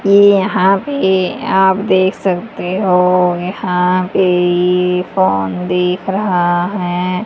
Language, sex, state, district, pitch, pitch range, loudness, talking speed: Hindi, female, Haryana, Charkhi Dadri, 180 Hz, 180-190 Hz, -14 LUFS, 115 wpm